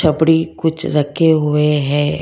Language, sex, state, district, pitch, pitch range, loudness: Hindi, female, Karnataka, Bangalore, 155 Hz, 150-160 Hz, -15 LUFS